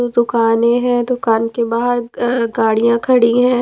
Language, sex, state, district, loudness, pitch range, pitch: Hindi, female, Punjab, Pathankot, -15 LUFS, 230-245 Hz, 240 Hz